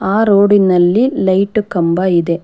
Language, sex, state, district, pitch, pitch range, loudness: Kannada, female, Karnataka, Bangalore, 190 Hz, 175-205 Hz, -12 LUFS